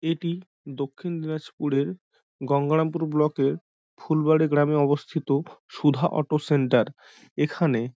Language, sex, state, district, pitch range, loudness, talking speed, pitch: Bengali, male, West Bengal, Dakshin Dinajpur, 140-160 Hz, -25 LUFS, 100 wpm, 150 Hz